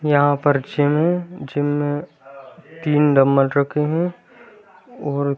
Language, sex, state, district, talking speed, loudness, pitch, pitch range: Hindi, male, Bihar, Bhagalpur, 120 wpm, -19 LUFS, 145 Hz, 140-165 Hz